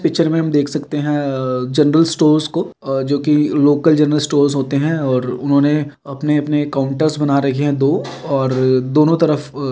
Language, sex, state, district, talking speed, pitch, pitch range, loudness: Hindi, male, Uttar Pradesh, Hamirpur, 190 wpm, 145 Hz, 140-150 Hz, -16 LUFS